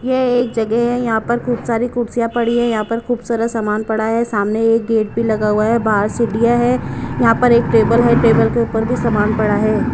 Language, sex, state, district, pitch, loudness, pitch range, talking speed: Hindi, female, Punjab, Kapurthala, 230 Hz, -16 LUFS, 220-240 Hz, 240 wpm